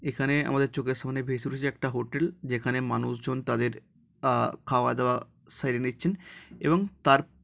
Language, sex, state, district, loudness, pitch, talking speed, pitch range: Bengali, male, West Bengal, Jhargram, -28 LUFS, 135 Hz, 155 wpm, 125-145 Hz